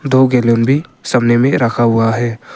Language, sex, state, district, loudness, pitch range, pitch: Hindi, male, Arunachal Pradesh, Papum Pare, -13 LUFS, 115-130 Hz, 120 Hz